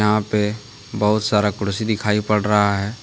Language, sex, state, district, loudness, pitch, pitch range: Hindi, male, Jharkhand, Deoghar, -19 LUFS, 105 Hz, 105-110 Hz